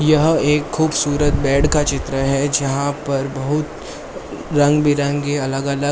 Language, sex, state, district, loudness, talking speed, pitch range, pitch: Hindi, male, Maharashtra, Mumbai Suburban, -18 LUFS, 140 wpm, 140-150 Hz, 145 Hz